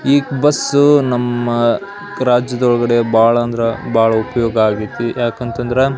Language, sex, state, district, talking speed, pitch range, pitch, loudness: Kannada, male, Karnataka, Belgaum, 100 wpm, 115-130 Hz, 120 Hz, -15 LUFS